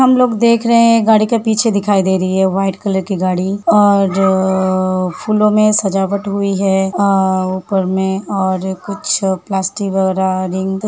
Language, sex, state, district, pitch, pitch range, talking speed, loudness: Hindi, female, Uttar Pradesh, Hamirpur, 195 Hz, 190-210 Hz, 180 wpm, -14 LUFS